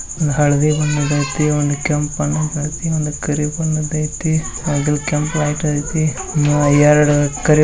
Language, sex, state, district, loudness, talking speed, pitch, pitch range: Kannada, male, Karnataka, Bijapur, -17 LUFS, 140 wpm, 150 Hz, 145-155 Hz